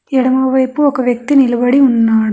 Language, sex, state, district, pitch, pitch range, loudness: Telugu, female, Telangana, Hyderabad, 260 Hz, 240-270 Hz, -12 LUFS